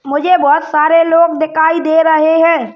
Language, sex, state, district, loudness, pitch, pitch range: Hindi, male, Madhya Pradesh, Bhopal, -11 LUFS, 320 Hz, 310-330 Hz